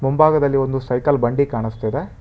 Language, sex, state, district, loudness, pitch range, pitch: Kannada, male, Karnataka, Bangalore, -18 LUFS, 120-145 Hz, 135 Hz